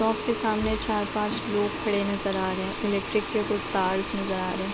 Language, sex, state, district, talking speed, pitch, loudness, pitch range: Hindi, female, Uttar Pradesh, Deoria, 240 wpm, 205 Hz, -27 LUFS, 195-215 Hz